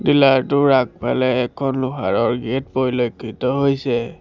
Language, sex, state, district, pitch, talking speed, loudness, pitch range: Assamese, male, Assam, Sonitpur, 130 Hz, 100 wpm, -19 LUFS, 120-135 Hz